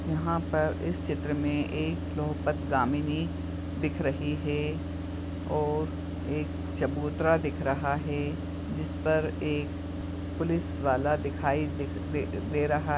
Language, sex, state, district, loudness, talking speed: Hindi, male, Uttar Pradesh, Jyotiba Phule Nagar, -30 LUFS, 120 wpm